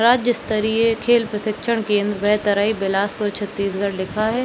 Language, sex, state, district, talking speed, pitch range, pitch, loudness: Hindi, female, Chhattisgarh, Bilaspur, 120 wpm, 205-225 Hz, 210 Hz, -20 LUFS